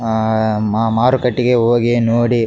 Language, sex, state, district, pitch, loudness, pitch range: Kannada, male, Karnataka, Raichur, 115 Hz, -15 LUFS, 110-120 Hz